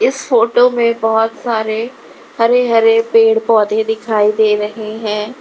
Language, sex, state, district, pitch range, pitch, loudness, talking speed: Hindi, female, Uttar Pradesh, Lalitpur, 220-235 Hz, 225 Hz, -14 LUFS, 145 wpm